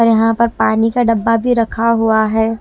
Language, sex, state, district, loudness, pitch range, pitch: Hindi, female, Himachal Pradesh, Shimla, -14 LUFS, 220-230 Hz, 225 Hz